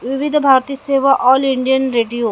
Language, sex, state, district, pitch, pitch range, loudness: Marathi, female, Maharashtra, Mumbai Suburban, 265 Hz, 255-275 Hz, -14 LUFS